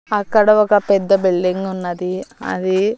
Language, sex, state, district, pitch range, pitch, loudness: Telugu, female, Andhra Pradesh, Annamaya, 185-210 Hz, 195 Hz, -16 LUFS